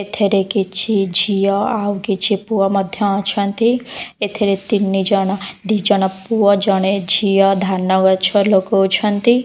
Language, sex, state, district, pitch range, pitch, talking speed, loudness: Odia, female, Odisha, Khordha, 195-210 Hz, 200 Hz, 120 wpm, -16 LUFS